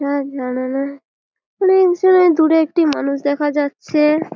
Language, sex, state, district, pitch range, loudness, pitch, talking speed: Bengali, female, West Bengal, Malda, 280-330 Hz, -16 LUFS, 295 Hz, 70 wpm